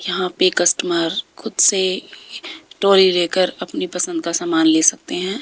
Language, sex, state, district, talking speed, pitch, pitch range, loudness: Hindi, female, Haryana, Rohtak, 155 wpm, 180 Hz, 170-195 Hz, -17 LUFS